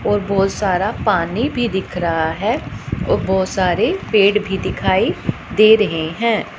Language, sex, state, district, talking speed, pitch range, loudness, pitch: Hindi, female, Punjab, Pathankot, 155 wpm, 180-215 Hz, -17 LUFS, 195 Hz